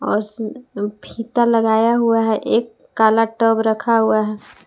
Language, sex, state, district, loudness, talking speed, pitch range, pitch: Hindi, female, Jharkhand, Palamu, -17 LUFS, 140 wpm, 215-230 Hz, 225 Hz